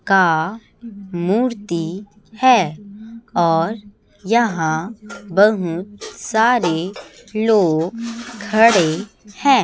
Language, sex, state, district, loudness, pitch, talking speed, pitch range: Hindi, female, Chhattisgarh, Raipur, -18 LUFS, 205 Hz, 60 wpm, 175-230 Hz